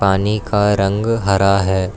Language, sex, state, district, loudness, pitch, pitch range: Hindi, male, Karnataka, Bangalore, -16 LUFS, 100 Hz, 95-105 Hz